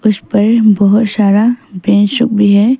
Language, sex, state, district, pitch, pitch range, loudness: Hindi, female, Arunachal Pradesh, Papum Pare, 210 Hz, 205-230 Hz, -11 LUFS